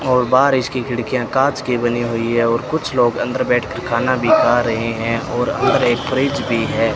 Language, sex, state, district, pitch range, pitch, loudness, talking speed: Hindi, male, Rajasthan, Bikaner, 115-130 Hz, 120 Hz, -17 LUFS, 215 wpm